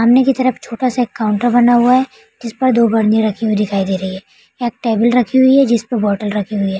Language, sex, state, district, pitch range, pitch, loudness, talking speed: Hindi, female, Bihar, Araria, 210-250 Hz, 230 Hz, -14 LUFS, 255 wpm